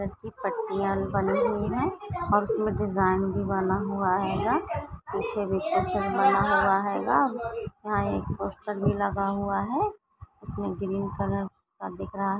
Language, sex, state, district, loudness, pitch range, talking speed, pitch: Hindi, female, Goa, North and South Goa, -27 LUFS, 195-210 Hz, 150 wpm, 195 Hz